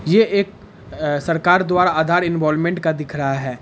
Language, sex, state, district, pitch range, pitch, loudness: Hindi, male, Bihar, Araria, 150-180 Hz, 165 Hz, -18 LUFS